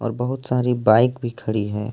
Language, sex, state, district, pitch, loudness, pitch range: Hindi, male, Jharkhand, Ranchi, 120 Hz, -20 LUFS, 110-125 Hz